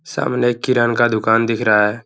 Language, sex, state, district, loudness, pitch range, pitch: Hindi, male, Uttar Pradesh, Hamirpur, -16 LUFS, 110-120 Hz, 115 Hz